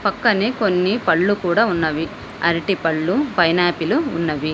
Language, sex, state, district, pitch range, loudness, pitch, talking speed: Telugu, female, Telangana, Hyderabad, 165-200 Hz, -19 LUFS, 175 Hz, 120 wpm